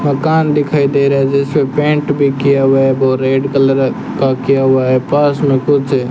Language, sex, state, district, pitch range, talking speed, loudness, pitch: Hindi, male, Rajasthan, Bikaner, 135-145 Hz, 215 wpm, -13 LUFS, 140 Hz